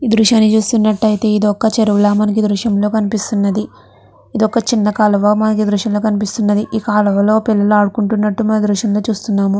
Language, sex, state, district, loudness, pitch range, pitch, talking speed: Telugu, female, Andhra Pradesh, Chittoor, -14 LUFS, 205-220 Hz, 210 Hz, 150 wpm